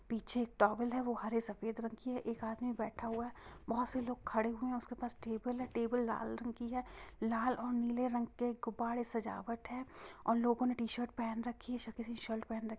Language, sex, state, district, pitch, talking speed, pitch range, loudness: Hindi, female, Bihar, Sitamarhi, 235 Hz, 240 wpm, 225-245 Hz, -39 LUFS